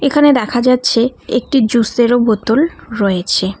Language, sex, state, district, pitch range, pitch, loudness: Bengali, female, West Bengal, Cooch Behar, 225-255 Hz, 240 Hz, -13 LUFS